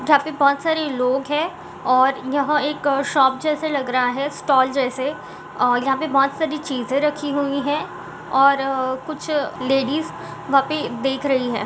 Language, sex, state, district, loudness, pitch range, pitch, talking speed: Hindi, female, Chhattisgarh, Balrampur, -20 LUFS, 265-295 Hz, 275 Hz, 170 wpm